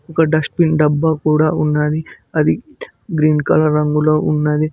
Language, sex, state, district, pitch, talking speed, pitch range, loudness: Telugu, male, Telangana, Mahabubabad, 155 Hz, 125 wpm, 150-155 Hz, -16 LUFS